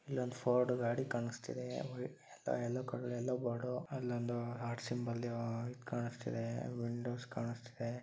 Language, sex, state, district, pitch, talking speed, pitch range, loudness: Kannada, male, Karnataka, Dharwad, 120 Hz, 105 wpm, 120-125 Hz, -40 LUFS